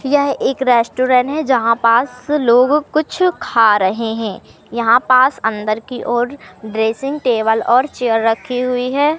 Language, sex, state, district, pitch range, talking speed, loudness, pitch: Hindi, male, Madhya Pradesh, Katni, 225-270 Hz, 150 wpm, -15 LUFS, 245 Hz